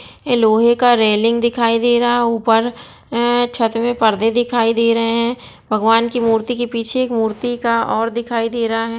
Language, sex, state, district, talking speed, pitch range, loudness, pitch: Hindi, female, Chhattisgarh, Bilaspur, 185 wpm, 225-240 Hz, -16 LUFS, 230 Hz